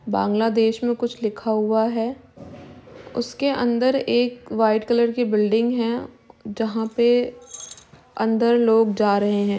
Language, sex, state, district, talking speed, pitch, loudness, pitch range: Hindi, female, Uttar Pradesh, Jyotiba Phule Nagar, 130 wpm, 230 Hz, -21 LUFS, 220-240 Hz